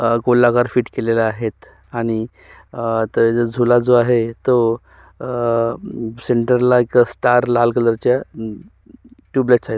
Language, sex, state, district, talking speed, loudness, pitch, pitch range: Marathi, male, Maharashtra, Solapur, 135 wpm, -17 LUFS, 120 Hz, 115-125 Hz